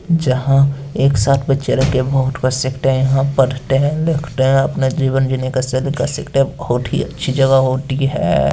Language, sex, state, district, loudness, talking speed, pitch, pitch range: Hindi, male, Chandigarh, Chandigarh, -16 LUFS, 195 wpm, 135 Hz, 130-140 Hz